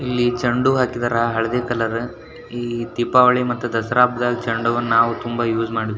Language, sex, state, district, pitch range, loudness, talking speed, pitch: Kannada, male, Karnataka, Shimoga, 115-125 Hz, -19 LUFS, 180 wpm, 120 Hz